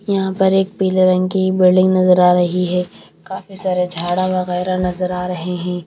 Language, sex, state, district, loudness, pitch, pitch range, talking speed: Hindi, female, Punjab, Kapurthala, -16 LUFS, 185 Hz, 180-190 Hz, 195 wpm